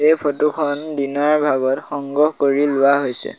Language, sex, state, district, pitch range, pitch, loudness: Assamese, male, Assam, Sonitpur, 140-150 Hz, 145 Hz, -18 LUFS